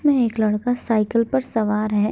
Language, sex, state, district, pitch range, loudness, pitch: Hindi, female, Bihar, Begusarai, 215-245 Hz, -21 LUFS, 225 Hz